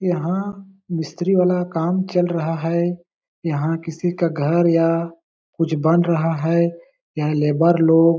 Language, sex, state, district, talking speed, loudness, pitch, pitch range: Hindi, male, Chhattisgarh, Balrampur, 145 wpm, -20 LUFS, 170 Hz, 165-175 Hz